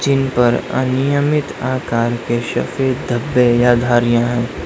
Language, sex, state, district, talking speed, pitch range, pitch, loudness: Hindi, male, Uttar Pradesh, Lalitpur, 130 wpm, 120-135 Hz, 125 Hz, -16 LUFS